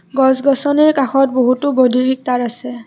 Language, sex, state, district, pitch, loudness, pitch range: Assamese, female, Assam, Kamrup Metropolitan, 260 Hz, -14 LUFS, 250-275 Hz